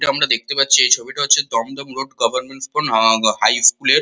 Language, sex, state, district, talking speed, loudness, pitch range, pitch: Bengali, male, West Bengal, Kolkata, 210 wpm, -15 LUFS, 115-140 Hz, 135 Hz